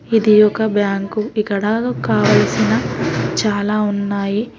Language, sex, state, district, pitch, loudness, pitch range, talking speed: Telugu, female, Telangana, Hyderabad, 210 Hz, -16 LUFS, 200-220 Hz, 90 wpm